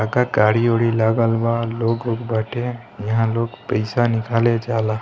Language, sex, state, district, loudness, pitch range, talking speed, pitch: Bhojpuri, male, Bihar, East Champaran, -20 LUFS, 110-115 Hz, 155 wpm, 115 Hz